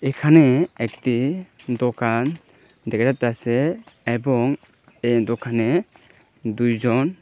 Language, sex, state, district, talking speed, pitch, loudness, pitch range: Bengali, male, Tripura, Dhalai, 75 wpm, 120 Hz, -21 LUFS, 115-140 Hz